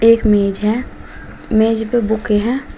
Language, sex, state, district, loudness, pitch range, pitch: Hindi, female, Uttar Pradesh, Shamli, -16 LUFS, 210-235 Hz, 220 Hz